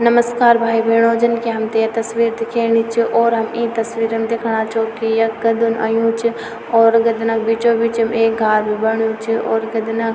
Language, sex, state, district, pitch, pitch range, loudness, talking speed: Garhwali, female, Uttarakhand, Tehri Garhwal, 230 Hz, 225-230 Hz, -16 LUFS, 205 wpm